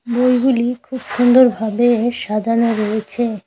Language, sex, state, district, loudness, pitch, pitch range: Bengali, female, West Bengal, Cooch Behar, -16 LUFS, 240 Hz, 220-250 Hz